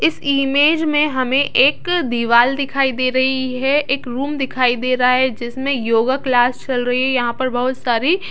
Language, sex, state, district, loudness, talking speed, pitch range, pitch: Hindi, female, Bihar, East Champaran, -17 LUFS, 190 wpm, 250-275 Hz, 260 Hz